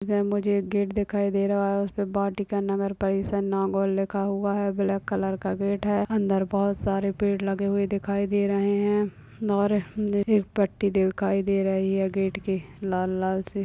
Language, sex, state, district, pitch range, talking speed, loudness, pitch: Hindi, male, Maharashtra, Nagpur, 195-200 Hz, 180 wpm, -26 LUFS, 200 Hz